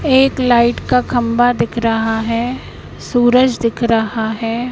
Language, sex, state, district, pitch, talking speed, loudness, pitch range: Hindi, female, Madhya Pradesh, Katni, 235 Hz, 140 wpm, -15 LUFS, 230-250 Hz